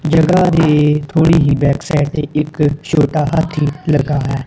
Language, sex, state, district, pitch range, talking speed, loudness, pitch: Punjabi, female, Punjab, Kapurthala, 145-160 Hz, 160 wpm, -14 LUFS, 150 Hz